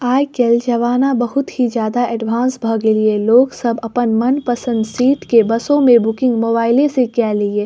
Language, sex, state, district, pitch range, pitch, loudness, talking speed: Maithili, female, Bihar, Saharsa, 225-255 Hz, 240 Hz, -15 LUFS, 180 wpm